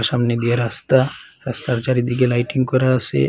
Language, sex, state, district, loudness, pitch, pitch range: Bengali, male, Assam, Hailakandi, -19 LUFS, 120 Hz, 120-130 Hz